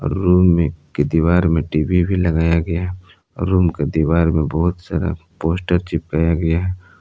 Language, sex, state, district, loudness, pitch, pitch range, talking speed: Hindi, male, Jharkhand, Palamu, -18 LUFS, 85 Hz, 80-90 Hz, 165 wpm